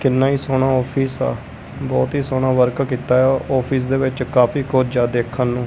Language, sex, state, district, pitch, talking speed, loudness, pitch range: Punjabi, male, Punjab, Kapurthala, 130 Hz, 200 wpm, -18 LUFS, 125-135 Hz